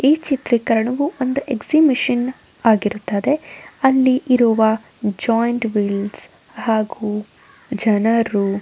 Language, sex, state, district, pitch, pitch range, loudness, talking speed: Kannada, female, Karnataka, Raichur, 230 Hz, 215-260 Hz, -18 LUFS, 85 wpm